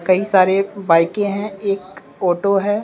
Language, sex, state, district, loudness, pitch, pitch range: Hindi, male, Jharkhand, Deoghar, -17 LUFS, 195 Hz, 185-200 Hz